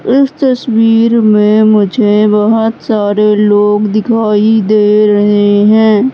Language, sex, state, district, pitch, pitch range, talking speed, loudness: Hindi, female, Madhya Pradesh, Katni, 215 Hz, 210-225 Hz, 105 wpm, -9 LUFS